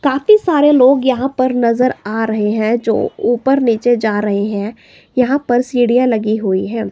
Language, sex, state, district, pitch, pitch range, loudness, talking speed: Hindi, female, Himachal Pradesh, Shimla, 240 Hz, 220-265 Hz, -14 LUFS, 180 wpm